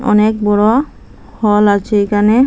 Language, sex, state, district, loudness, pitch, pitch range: Bengali, female, Assam, Hailakandi, -13 LUFS, 210 Hz, 205-220 Hz